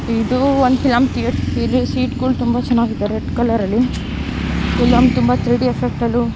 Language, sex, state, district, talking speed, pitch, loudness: Kannada, female, Karnataka, Raichur, 180 wpm, 225 Hz, -17 LUFS